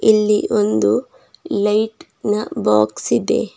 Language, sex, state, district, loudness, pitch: Kannada, female, Karnataka, Bidar, -18 LUFS, 210 Hz